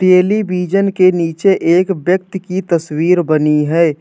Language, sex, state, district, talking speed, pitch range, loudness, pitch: Hindi, male, Uttar Pradesh, Hamirpur, 135 wpm, 165-190 Hz, -14 LUFS, 180 Hz